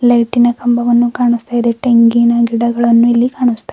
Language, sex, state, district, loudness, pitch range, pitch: Kannada, female, Karnataka, Bidar, -12 LUFS, 235-240 Hz, 240 Hz